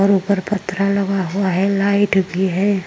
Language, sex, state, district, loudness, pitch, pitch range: Hindi, female, Uttar Pradesh, Jyotiba Phule Nagar, -18 LUFS, 195 Hz, 190-200 Hz